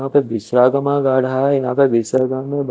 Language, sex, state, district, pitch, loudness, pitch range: Hindi, male, Chandigarh, Chandigarh, 130 Hz, -16 LUFS, 125-140 Hz